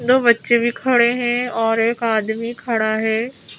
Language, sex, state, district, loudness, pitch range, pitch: Hindi, female, Madhya Pradesh, Bhopal, -18 LUFS, 225-240 Hz, 235 Hz